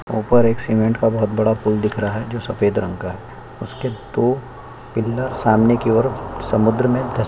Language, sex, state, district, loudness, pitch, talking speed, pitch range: Hindi, male, Chhattisgarh, Sukma, -19 LUFS, 115 Hz, 200 wpm, 110-120 Hz